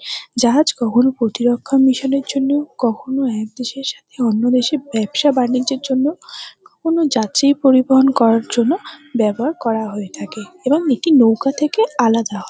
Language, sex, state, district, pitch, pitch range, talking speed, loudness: Bengali, female, West Bengal, North 24 Parganas, 260 Hz, 235-285 Hz, 150 wpm, -16 LUFS